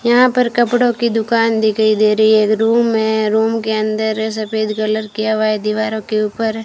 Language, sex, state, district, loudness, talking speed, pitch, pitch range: Hindi, female, Rajasthan, Bikaner, -15 LUFS, 205 wpm, 220 Hz, 215-225 Hz